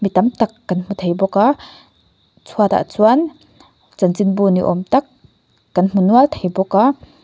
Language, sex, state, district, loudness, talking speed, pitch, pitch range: Mizo, female, Mizoram, Aizawl, -16 LUFS, 165 wpm, 200 Hz, 190-245 Hz